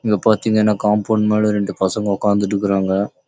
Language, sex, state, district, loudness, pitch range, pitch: Tamil, male, Karnataka, Chamarajanagar, -17 LUFS, 100-105 Hz, 105 Hz